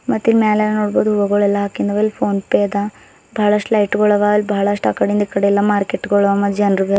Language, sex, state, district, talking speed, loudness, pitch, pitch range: Kannada, female, Karnataka, Bidar, 200 wpm, -16 LUFS, 205 Hz, 200-210 Hz